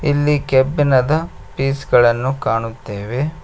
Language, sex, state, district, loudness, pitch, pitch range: Kannada, male, Karnataka, Koppal, -17 LUFS, 135 Hz, 120-145 Hz